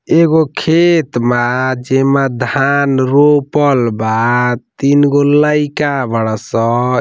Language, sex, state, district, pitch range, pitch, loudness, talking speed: Hindi, male, Uttar Pradesh, Ghazipur, 120-145 Hz, 135 Hz, -12 LUFS, 95 wpm